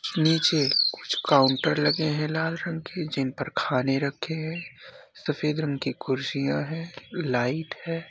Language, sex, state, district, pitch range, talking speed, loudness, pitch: Hindi, male, Bihar, Bhagalpur, 135-160 Hz, 150 wpm, -26 LUFS, 150 Hz